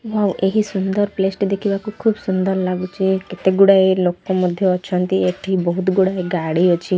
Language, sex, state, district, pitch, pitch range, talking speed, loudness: Odia, female, Odisha, Malkangiri, 190 Hz, 180-195 Hz, 170 wpm, -18 LUFS